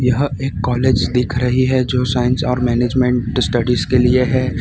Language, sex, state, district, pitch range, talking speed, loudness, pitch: Hindi, male, Gujarat, Valsad, 125-130 Hz, 180 wpm, -16 LUFS, 125 Hz